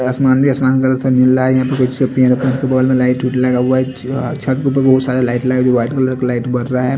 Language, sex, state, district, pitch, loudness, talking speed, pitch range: Hindi, male, Chandigarh, Chandigarh, 130 Hz, -14 LUFS, 205 wpm, 125-130 Hz